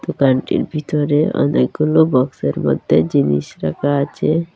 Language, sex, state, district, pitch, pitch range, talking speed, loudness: Bengali, female, Assam, Hailakandi, 145 Hz, 130-155 Hz, 105 wpm, -17 LUFS